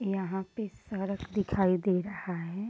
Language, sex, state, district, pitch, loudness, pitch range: Hindi, female, Bihar, Madhepura, 195 Hz, -32 LUFS, 185-205 Hz